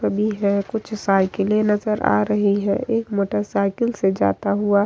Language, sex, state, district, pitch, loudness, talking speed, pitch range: Hindi, female, Bihar, Kishanganj, 200 Hz, -20 LUFS, 175 wpm, 195-215 Hz